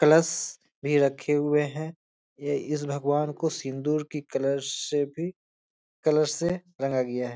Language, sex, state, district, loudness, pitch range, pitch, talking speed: Hindi, male, Bihar, Jahanabad, -27 LUFS, 140-155 Hz, 150 Hz, 155 wpm